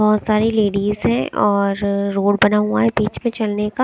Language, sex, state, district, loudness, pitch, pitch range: Hindi, female, Chandigarh, Chandigarh, -18 LUFS, 205 Hz, 200-215 Hz